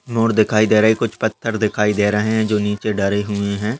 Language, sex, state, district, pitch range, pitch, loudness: Hindi, male, Uttar Pradesh, Gorakhpur, 105-110 Hz, 105 Hz, -18 LUFS